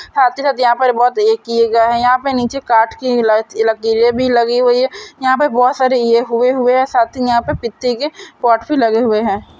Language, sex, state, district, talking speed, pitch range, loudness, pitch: Hindi, male, Andhra Pradesh, Guntur, 215 wpm, 230-260 Hz, -14 LUFS, 245 Hz